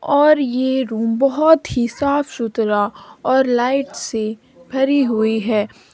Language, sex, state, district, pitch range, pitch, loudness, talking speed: Hindi, female, Jharkhand, Deoghar, 225-275 Hz, 260 Hz, -18 LUFS, 130 wpm